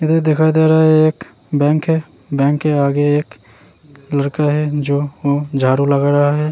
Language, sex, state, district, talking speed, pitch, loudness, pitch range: Hindi, male, Uttarakhand, Tehri Garhwal, 175 wpm, 145 Hz, -15 LUFS, 140-155 Hz